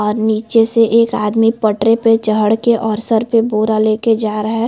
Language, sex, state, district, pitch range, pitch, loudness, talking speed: Hindi, female, Chhattisgarh, Bilaspur, 215-225 Hz, 225 Hz, -14 LUFS, 230 wpm